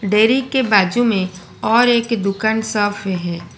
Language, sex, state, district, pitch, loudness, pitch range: Hindi, female, Gujarat, Valsad, 210 Hz, -17 LUFS, 195-235 Hz